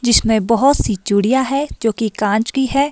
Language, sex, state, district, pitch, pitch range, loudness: Hindi, female, Himachal Pradesh, Shimla, 230 Hz, 215-265 Hz, -16 LUFS